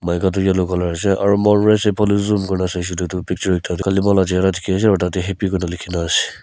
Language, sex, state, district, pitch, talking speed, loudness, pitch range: Nagamese, male, Nagaland, Kohima, 95 Hz, 150 wpm, -18 LUFS, 90-100 Hz